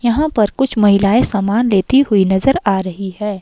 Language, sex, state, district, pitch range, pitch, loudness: Hindi, female, Himachal Pradesh, Shimla, 195-240 Hz, 210 Hz, -14 LUFS